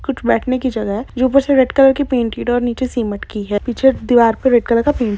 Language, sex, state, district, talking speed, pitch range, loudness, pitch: Hindi, female, Jharkhand, Sahebganj, 280 wpm, 230-260 Hz, -15 LUFS, 245 Hz